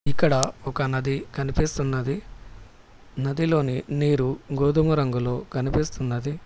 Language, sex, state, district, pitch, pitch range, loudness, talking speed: Telugu, male, Telangana, Hyderabad, 135 Hz, 130-145 Hz, -25 LUFS, 85 wpm